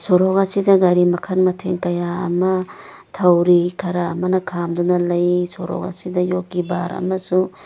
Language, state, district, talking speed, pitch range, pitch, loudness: Manipuri, Manipur, Imphal West, 140 wpm, 175-185 Hz, 180 Hz, -18 LUFS